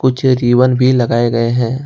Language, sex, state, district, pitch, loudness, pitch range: Hindi, male, Jharkhand, Ranchi, 125 Hz, -13 LUFS, 120-130 Hz